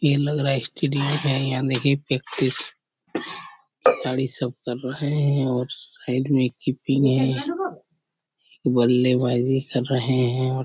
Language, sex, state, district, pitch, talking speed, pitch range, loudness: Hindi, male, Chhattisgarh, Korba, 130 Hz, 135 wpm, 130-145 Hz, -23 LUFS